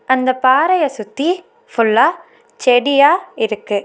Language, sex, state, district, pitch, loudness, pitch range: Tamil, female, Tamil Nadu, Nilgiris, 265 Hz, -15 LUFS, 230-355 Hz